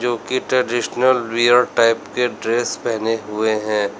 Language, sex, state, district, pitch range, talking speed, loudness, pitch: Hindi, male, Uttar Pradesh, Lalitpur, 110-125 Hz, 150 wpm, -18 LUFS, 120 Hz